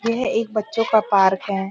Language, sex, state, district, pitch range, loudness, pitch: Hindi, female, Uttarakhand, Uttarkashi, 195-225 Hz, -19 LUFS, 215 Hz